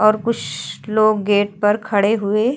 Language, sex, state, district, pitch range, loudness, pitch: Hindi, female, Uttar Pradesh, Hamirpur, 205-215 Hz, -18 LUFS, 215 Hz